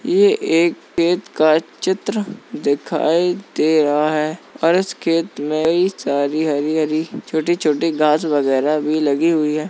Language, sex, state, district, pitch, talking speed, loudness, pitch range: Hindi, male, Uttar Pradesh, Jalaun, 155 Hz, 150 wpm, -18 LUFS, 150-175 Hz